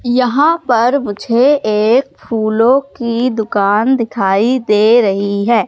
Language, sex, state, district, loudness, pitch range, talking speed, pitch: Hindi, female, Madhya Pradesh, Katni, -13 LUFS, 210-255 Hz, 115 wpm, 235 Hz